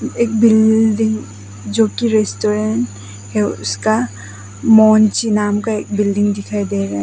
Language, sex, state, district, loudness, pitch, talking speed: Hindi, female, Arunachal Pradesh, Papum Pare, -15 LUFS, 205 Hz, 130 wpm